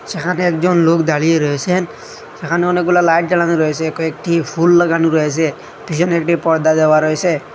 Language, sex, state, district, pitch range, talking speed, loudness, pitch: Bengali, male, Assam, Hailakandi, 160-175 Hz, 150 wpm, -15 LUFS, 165 Hz